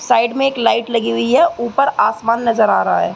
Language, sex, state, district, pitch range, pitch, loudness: Hindi, female, Uttar Pradesh, Gorakhpur, 225-255 Hz, 235 Hz, -15 LUFS